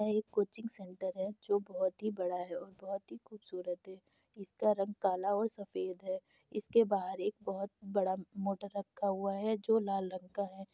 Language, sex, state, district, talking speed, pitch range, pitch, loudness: Hindi, female, Uttar Pradesh, Jalaun, 195 wpm, 185-210 Hz, 195 Hz, -37 LUFS